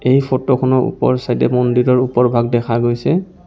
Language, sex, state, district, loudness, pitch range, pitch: Assamese, male, Assam, Kamrup Metropolitan, -15 LUFS, 120-130 Hz, 125 Hz